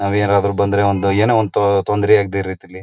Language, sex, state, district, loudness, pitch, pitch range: Kannada, male, Karnataka, Mysore, -16 LUFS, 100 Hz, 100-105 Hz